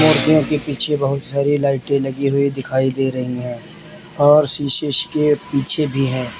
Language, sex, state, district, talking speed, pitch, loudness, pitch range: Hindi, male, Uttar Pradesh, Lalitpur, 170 wpm, 140 Hz, -17 LUFS, 135-150 Hz